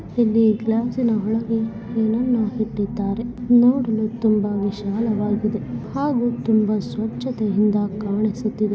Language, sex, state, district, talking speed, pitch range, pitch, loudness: Kannada, female, Karnataka, Mysore, 130 wpm, 210-230 Hz, 220 Hz, -21 LUFS